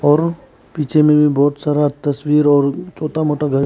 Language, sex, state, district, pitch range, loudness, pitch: Hindi, male, Arunachal Pradesh, Papum Pare, 145-155 Hz, -16 LUFS, 150 Hz